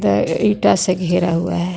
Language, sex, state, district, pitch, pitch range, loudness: Hindi, female, Jharkhand, Garhwa, 175 Hz, 165-185 Hz, -17 LUFS